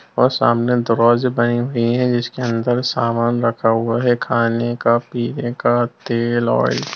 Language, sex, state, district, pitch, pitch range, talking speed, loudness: Hindi, male, Bihar, Jamui, 120 Hz, 115-120 Hz, 155 wpm, -17 LUFS